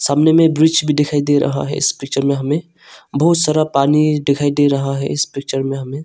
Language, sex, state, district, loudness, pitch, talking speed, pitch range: Hindi, male, Arunachal Pradesh, Longding, -16 LUFS, 145 Hz, 230 wpm, 140-155 Hz